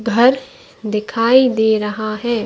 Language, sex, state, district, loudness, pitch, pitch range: Hindi, female, Chhattisgarh, Bastar, -16 LUFS, 230 Hz, 215-240 Hz